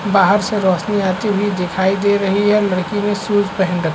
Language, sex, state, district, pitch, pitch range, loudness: Hindi, male, Chhattisgarh, Bilaspur, 200 Hz, 185-205 Hz, -16 LUFS